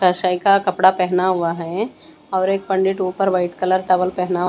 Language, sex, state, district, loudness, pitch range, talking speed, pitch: Hindi, female, Maharashtra, Mumbai Suburban, -18 LUFS, 180-195 Hz, 185 wpm, 185 Hz